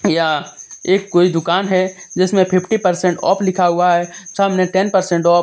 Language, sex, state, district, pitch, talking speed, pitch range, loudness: Hindi, male, Jharkhand, Deoghar, 185 Hz, 190 wpm, 175-190 Hz, -16 LUFS